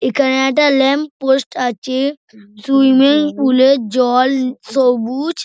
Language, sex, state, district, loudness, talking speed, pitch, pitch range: Bengali, male, West Bengal, Dakshin Dinajpur, -14 LUFS, 120 wpm, 265 Hz, 250-275 Hz